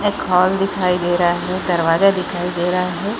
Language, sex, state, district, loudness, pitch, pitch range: Hindi, female, Chhattisgarh, Raigarh, -17 LUFS, 180 Hz, 175-195 Hz